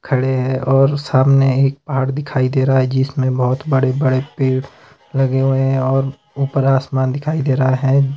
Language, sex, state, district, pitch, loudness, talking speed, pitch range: Hindi, male, Himachal Pradesh, Shimla, 135 Hz, -16 LUFS, 185 wpm, 130-135 Hz